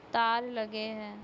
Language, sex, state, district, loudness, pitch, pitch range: Hindi, female, West Bengal, Purulia, -32 LUFS, 220 Hz, 215-230 Hz